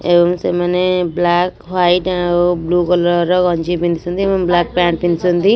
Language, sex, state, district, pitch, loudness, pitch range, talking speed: Odia, female, Odisha, Nuapada, 175 Hz, -15 LUFS, 175-180 Hz, 150 wpm